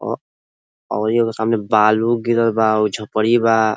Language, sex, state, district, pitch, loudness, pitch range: Bhojpuri, male, Uttar Pradesh, Ghazipur, 110 Hz, -17 LUFS, 105-115 Hz